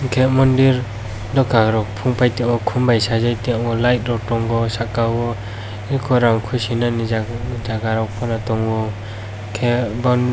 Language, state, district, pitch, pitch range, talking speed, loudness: Kokborok, Tripura, West Tripura, 115 Hz, 110-125 Hz, 110 wpm, -19 LUFS